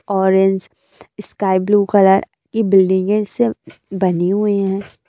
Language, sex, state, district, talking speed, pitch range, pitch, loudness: Hindi, female, Bihar, Jamui, 120 wpm, 190-210 Hz, 195 Hz, -16 LUFS